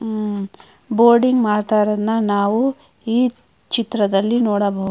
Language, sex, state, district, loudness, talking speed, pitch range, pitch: Kannada, female, Karnataka, Mysore, -18 LUFS, 100 wpm, 205-235 Hz, 220 Hz